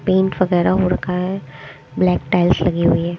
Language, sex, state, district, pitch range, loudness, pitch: Hindi, female, Chandigarh, Chandigarh, 175-185 Hz, -17 LUFS, 180 Hz